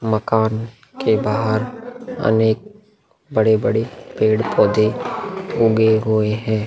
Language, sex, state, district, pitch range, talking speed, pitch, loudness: Hindi, male, Bihar, Vaishali, 110-115 Hz, 80 wpm, 110 Hz, -18 LUFS